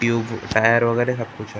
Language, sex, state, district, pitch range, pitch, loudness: Hindi, male, Maharashtra, Gondia, 110-115 Hz, 115 Hz, -20 LUFS